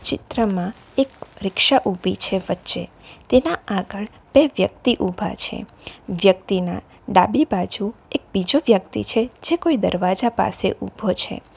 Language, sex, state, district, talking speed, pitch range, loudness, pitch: Gujarati, female, Gujarat, Valsad, 130 wpm, 190-265 Hz, -21 LUFS, 205 Hz